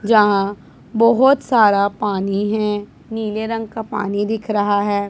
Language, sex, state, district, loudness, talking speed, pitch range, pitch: Hindi, female, Punjab, Pathankot, -18 LUFS, 140 wpm, 205-225 Hz, 210 Hz